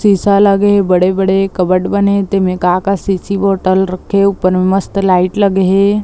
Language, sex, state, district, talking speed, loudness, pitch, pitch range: Chhattisgarhi, female, Chhattisgarh, Bilaspur, 220 wpm, -12 LUFS, 195 Hz, 185-200 Hz